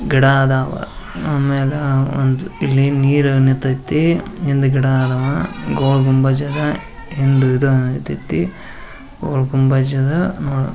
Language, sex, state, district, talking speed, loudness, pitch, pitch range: Kannada, male, Karnataka, Bijapur, 90 wpm, -16 LUFS, 135 Hz, 135-140 Hz